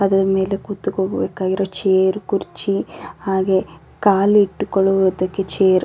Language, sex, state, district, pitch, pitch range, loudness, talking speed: Kannada, female, Karnataka, Raichur, 195 Hz, 190-200 Hz, -18 LUFS, 90 wpm